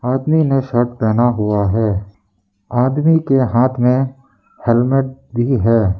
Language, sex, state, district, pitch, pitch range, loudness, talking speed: Hindi, male, Arunachal Pradesh, Lower Dibang Valley, 120 Hz, 110-135 Hz, -16 LUFS, 130 wpm